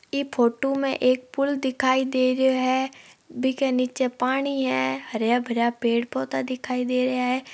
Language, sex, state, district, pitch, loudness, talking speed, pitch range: Marwari, female, Rajasthan, Nagaur, 255 Hz, -24 LUFS, 165 wpm, 240-265 Hz